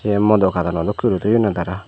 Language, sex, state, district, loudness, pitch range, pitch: Chakma, male, Tripura, Dhalai, -18 LUFS, 90-105 Hz, 100 Hz